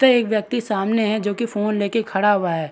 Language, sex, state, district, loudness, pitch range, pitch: Hindi, male, Chhattisgarh, Bastar, -20 LUFS, 200-225 Hz, 210 Hz